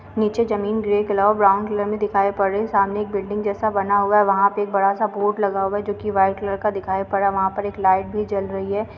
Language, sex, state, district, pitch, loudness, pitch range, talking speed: Hindi, female, Uttar Pradesh, Varanasi, 205 Hz, -20 LUFS, 195-210 Hz, 305 wpm